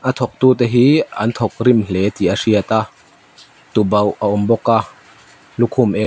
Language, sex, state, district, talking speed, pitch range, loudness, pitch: Mizo, male, Mizoram, Aizawl, 190 wpm, 105-120 Hz, -16 LUFS, 110 Hz